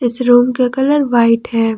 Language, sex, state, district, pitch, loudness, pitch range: Hindi, female, Jharkhand, Ranchi, 245 Hz, -13 LUFS, 230-255 Hz